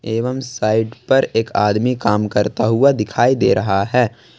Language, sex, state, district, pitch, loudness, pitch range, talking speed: Hindi, male, Jharkhand, Ranchi, 110 Hz, -17 LUFS, 105-125 Hz, 165 wpm